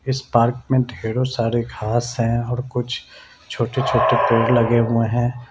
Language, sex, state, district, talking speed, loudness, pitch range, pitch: Hindi, male, Bihar, Jamui, 150 wpm, -20 LUFS, 115-125 Hz, 120 Hz